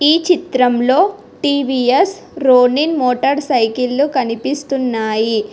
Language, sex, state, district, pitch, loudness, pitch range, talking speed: Telugu, female, Telangana, Hyderabad, 265 Hz, -15 LUFS, 250-295 Hz, 75 wpm